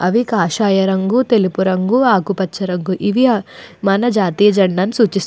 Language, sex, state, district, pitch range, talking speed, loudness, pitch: Telugu, female, Andhra Pradesh, Anantapur, 190-225 Hz, 125 wpm, -15 LUFS, 200 Hz